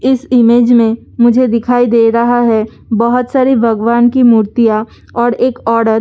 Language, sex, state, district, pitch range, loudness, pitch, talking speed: Hindi, female, Delhi, New Delhi, 230-245 Hz, -11 LUFS, 235 Hz, 200 wpm